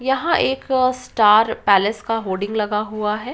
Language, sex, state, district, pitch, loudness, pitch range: Hindi, female, Uttar Pradesh, Ghazipur, 220 Hz, -18 LUFS, 210-255 Hz